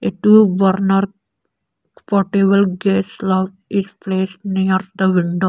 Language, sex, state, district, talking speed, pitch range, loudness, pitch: English, female, Arunachal Pradesh, Lower Dibang Valley, 120 wpm, 190-200 Hz, -16 LUFS, 195 Hz